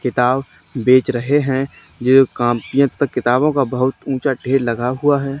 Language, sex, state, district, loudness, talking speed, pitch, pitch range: Hindi, male, Haryana, Charkhi Dadri, -17 LUFS, 165 wpm, 130 Hz, 125-140 Hz